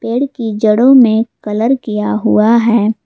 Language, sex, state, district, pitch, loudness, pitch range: Hindi, female, Jharkhand, Garhwa, 225 Hz, -12 LUFS, 215-240 Hz